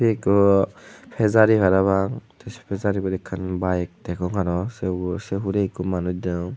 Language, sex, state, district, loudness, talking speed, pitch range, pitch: Chakma, male, Tripura, Unakoti, -22 LUFS, 135 wpm, 90-100 Hz, 95 Hz